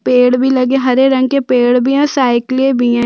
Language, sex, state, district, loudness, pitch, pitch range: Hindi, female, Chhattisgarh, Sukma, -12 LUFS, 255 Hz, 250-265 Hz